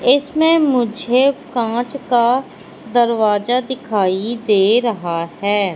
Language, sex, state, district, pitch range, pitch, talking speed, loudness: Hindi, female, Madhya Pradesh, Katni, 205-260 Hz, 240 Hz, 95 wpm, -17 LUFS